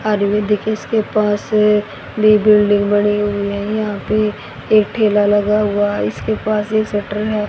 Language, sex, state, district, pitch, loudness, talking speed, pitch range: Hindi, female, Haryana, Rohtak, 210 Hz, -16 LUFS, 170 wpm, 205-215 Hz